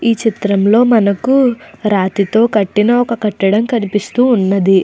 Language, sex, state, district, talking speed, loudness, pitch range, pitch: Telugu, female, Andhra Pradesh, Anantapur, 125 wpm, -13 LUFS, 200-235 Hz, 210 Hz